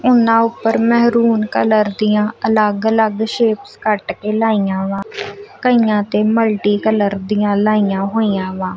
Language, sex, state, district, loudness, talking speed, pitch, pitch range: Punjabi, female, Punjab, Kapurthala, -15 LUFS, 130 wpm, 215 Hz, 205-230 Hz